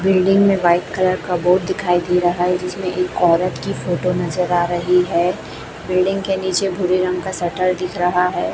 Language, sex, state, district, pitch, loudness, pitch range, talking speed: Hindi, female, Chhattisgarh, Raipur, 180 Hz, -18 LUFS, 175-185 Hz, 205 wpm